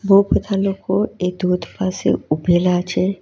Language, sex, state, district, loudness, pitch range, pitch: Gujarati, female, Gujarat, Valsad, -19 LUFS, 180-195 Hz, 185 Hz